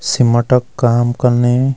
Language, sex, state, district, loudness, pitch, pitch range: Garhwali, male, Uttarakhand, Uttarkashi, -14 LUFS, 120 Hz, 120-125 Hz